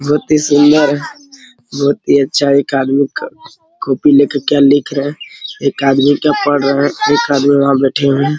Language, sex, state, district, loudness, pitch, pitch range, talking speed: Hindi, male, Bihar, Araria, -12 LUFS, 145 Hz, 140-150 Hz, 205 wpm